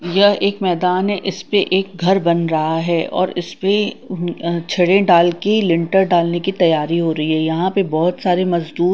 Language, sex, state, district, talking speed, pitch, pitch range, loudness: Hindi, female, Punjab, Kapurthala, 180 wpm, 180 Hz, 170-190 Hz, -17 LUFS